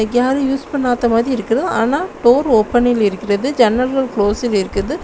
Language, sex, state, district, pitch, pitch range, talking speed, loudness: Tamil, female, Tamil Nadu, Kanyakumari, 240 Hz, 215-265 Hz, 145 wpm, -16 LUFS